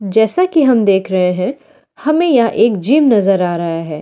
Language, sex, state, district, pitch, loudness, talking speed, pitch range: Hindi, female, Delhi, New Delhi, 220 Hz, -13 LUFS, 210 wpm, 185-280 Hz